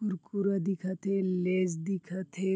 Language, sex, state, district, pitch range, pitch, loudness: Chhattisgarhi, male, Chhattisgarh, Bilaspur, 185-195 Hz, 190 Hz, -32 LUFS